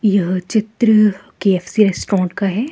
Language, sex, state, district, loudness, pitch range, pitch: Hindi, female, Himachal Pradesh, Shimla, -16 LUFS, 190-215 Hz, 200 Hz